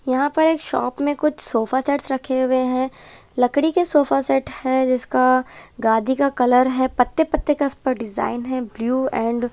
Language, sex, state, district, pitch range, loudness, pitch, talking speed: Hindi, female, Punjab, Kapurthala, 245-285 Hz, -19 LUFS, 260 Hz, 195 wpm